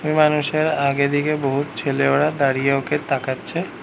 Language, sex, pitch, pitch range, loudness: Bengali, male, 140 Hz, 135-150 Hz, -20 LUFS